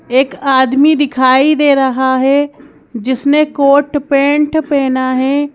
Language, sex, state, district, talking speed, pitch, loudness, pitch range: Hindi, female, Madhya Pradesh, Bhopal, 120 wpm, 275 Hz, -12 LUFS, 260-290 Hz